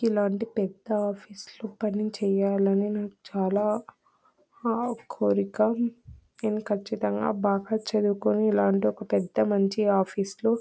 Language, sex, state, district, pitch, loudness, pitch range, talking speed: Telugu, female, Andhra Pradesh, Anantapur, 205 Hz, -27 LUFS, 195-215 Hz, 120 wpm